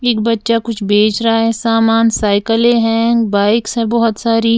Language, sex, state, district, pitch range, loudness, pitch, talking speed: Hindi, female, Uttar Pradesh, Lalitpur, 220-230 Hz, -13 LUFS, 225 Hz, 170 wpm